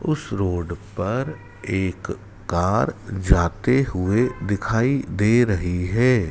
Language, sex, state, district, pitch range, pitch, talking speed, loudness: Hindi, male, Madhya Pradesh, Dhar, 90-120 Hz, 100 Hz, 105 wpm, -22 LUFS